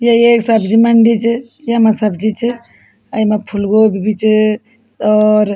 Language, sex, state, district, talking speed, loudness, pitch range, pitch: Garhwali, female, Uttarakhand, Tehri Garhwal, 170 wpm, -12 LUFS, 215-235 Hz, 220 Hz